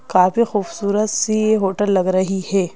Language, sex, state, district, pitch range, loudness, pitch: Hindi, female, Madhya Pradesh, Bhopal, 185-215 Hz, -18 LUFS, 200 Hz